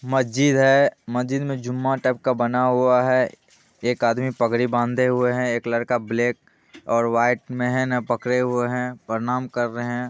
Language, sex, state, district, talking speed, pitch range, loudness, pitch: Maithili, male, Bihar, Supaul, 185 wpm, 120-130 Hz, -21 LUFS, 125 Hz